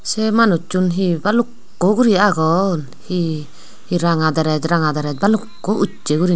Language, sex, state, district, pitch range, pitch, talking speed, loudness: Chakma, female, Tripura, Unakoti, 160-205 Hz, 180 Hz, 140 wpm, -17 LUFS